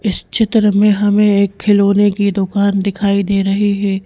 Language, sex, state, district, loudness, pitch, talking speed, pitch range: Hindi, female, Madhya Pradesh, Bhopal, -14 LUFS, 200 Hz, 175 wpm, 200-205 Hz